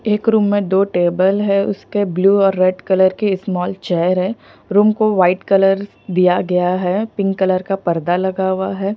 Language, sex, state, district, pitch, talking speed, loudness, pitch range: Hindi, female, Punjab, Pathankot, 190 Hz, 195 wpm, -16 LUFS, 185-200 Hz